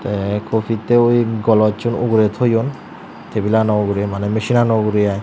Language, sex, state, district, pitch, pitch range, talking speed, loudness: Chakma, male, Tripura, Dhalai, 110 Hz, 105-120 Hz, 160 wpm, -17 LUFS